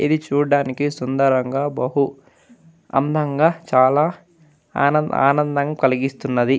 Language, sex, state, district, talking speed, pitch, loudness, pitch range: Telugu, male, Andhra Pradesh, Anantapur, 75 wpm, 145 Hz, -19 LUFS, 135-150 Hz